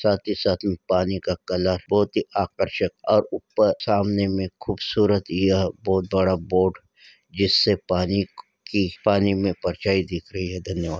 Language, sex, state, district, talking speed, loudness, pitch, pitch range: Hindi, female, Maharashtra, Nagpur, 160 wpm, -23 LUFS, 95 Hz, 90-100 Hz